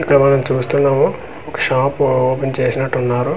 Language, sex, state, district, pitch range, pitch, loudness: Telugu, male, Andhra Pradesh, Manyam, 130-140 Hz, 135 Hz, -16 LUFS